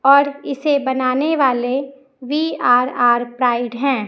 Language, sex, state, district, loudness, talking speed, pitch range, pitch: Hindi, female, Chhattisgarh, Raipur, -17 LUFS, 105 wpm, 245-280 Hz, 265 Hz